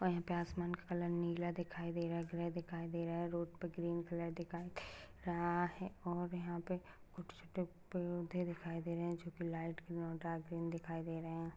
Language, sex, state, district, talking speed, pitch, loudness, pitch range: Hindi, female, Rajasthan, Nagaur, 230 wpm, 170 Hz, -43 LUFS, 170-175 Hz